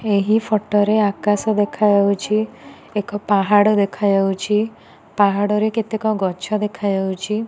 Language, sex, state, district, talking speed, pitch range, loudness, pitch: Odia, female, Odisha, Nuapada, 95 wpm, 200-215 Hz, -18 LUFS, 205 Hz